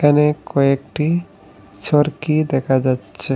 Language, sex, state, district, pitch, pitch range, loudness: Bengali, male, Assam, Hailakandi, 145 Hz, 135-150 Hz, -18 LUFS